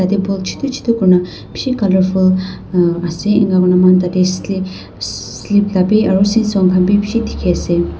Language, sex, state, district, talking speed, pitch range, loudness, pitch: Nagamese, female, Nagaland, Dimapur, 175 wpm, 180-205 Hz, -14 LUFS, 185 Hz